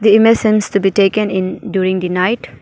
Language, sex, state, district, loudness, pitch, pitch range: English, female, Arunachal Pradesh, Papum Pare, -14 LUFS, 200 Hz, 190-215 Hz